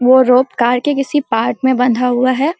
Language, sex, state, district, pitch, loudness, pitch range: Hindi, female, Bihar, Samastipur, 255 Hz, -14 LUFS, 250-275 Hz